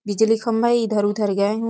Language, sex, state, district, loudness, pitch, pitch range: Hindi, female, Chhattisgarh, Rajnandgaon, -20 LUFS, 220 Hz, 205-230 Hz